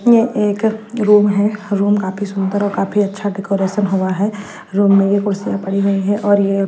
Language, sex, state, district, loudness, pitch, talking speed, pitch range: Hindi, female, Bihar, Patna, -16 LUFS, 205 Hz, 205 wpm, 195-210 Hz